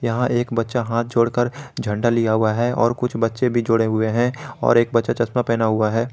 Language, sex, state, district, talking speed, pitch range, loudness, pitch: Hindi, male, Jharkhand, Garhwa, 225 wpm, 115-120 Hz, -20 LUFS, 115 Hz